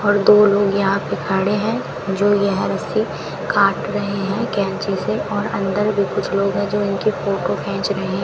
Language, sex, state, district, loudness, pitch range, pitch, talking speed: Hindi, female, Rajasthan, Bikaner, -19 LUFS, 195-205 Hz, 200 Hz, 180 wpm